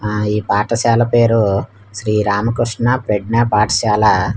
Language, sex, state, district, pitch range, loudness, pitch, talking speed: Telugu, male, Andhra Pradesh, Manyam, 105-115 Hz, -15 LUFS, 105 Hz, 110 wpm